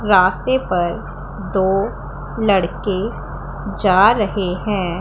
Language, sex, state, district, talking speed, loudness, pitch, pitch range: Hindi, female, Punjab, Pathankot, 85 wpm, -18 LUFS, 190 Hz, 180-200 Hz